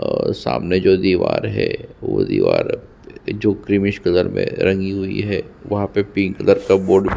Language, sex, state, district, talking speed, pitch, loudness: Hindi, male, Chhattisgarh, Sukma, 190 wpm, 100 Hz, -18 LUFS